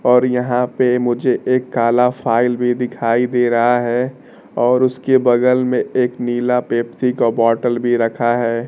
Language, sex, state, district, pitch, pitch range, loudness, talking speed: Hindi, male, Bihar, Kaimur, 125 Hz, 120-125 Hz, -16 LUFS, 165 wpm